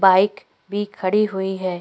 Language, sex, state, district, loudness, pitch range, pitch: Hindi, female, Goa, North and South Goa, -21 LUFS, 190-205 Hz, 190 Hz